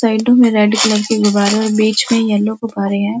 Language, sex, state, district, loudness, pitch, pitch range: Hindi, female, Uttar Pradesh, Muzaffarnagar, -13 LUFS, 215 Hz, 210-225 Hz